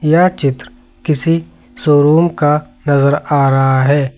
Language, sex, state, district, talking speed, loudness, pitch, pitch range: Hindi, male, Uttar Pradesh, Lucknow, 130 wpm, -13 LUFS, 145 Hz, 135-155 Hz